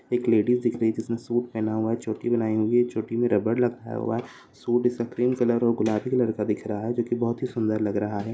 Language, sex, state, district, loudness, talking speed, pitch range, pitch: Hindi, male, Uttar Pradesh, Deoria, -25 LUFS, 265 wpm, 110-120 Hz, 115 Hz